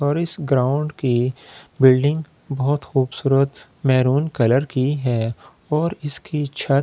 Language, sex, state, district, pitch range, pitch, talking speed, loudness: Hindi, male, Delhi, New Delhi, 130-150 Hz, 140 Hz, 130 wpm, -20 LUFS